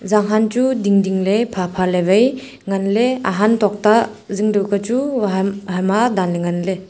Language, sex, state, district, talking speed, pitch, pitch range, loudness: Wancho, female, Arunachal Pradesh, Longding, 175 wpm, 200 Hz, 190-225 Hz, -17 LUFS